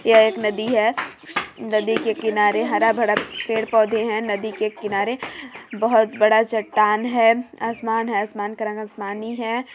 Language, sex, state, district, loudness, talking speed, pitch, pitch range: Hindi, female, Chhattisgarh, Balrampur, -21 LUFS, 160 wpm, 220 Hz, 215-225 Hz